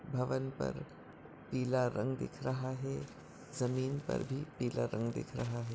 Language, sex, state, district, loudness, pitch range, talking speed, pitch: Hindi, male, Maharashtra, Dhule, -38 LUFS, 125-135 Hz, 155 wpm, 130 Hz